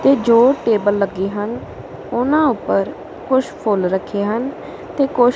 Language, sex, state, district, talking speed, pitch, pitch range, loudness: Punjabi, male, Punjab, Kapurthala, 145 wpm, 235 Hz, 205-265 Hz, -17 LUFS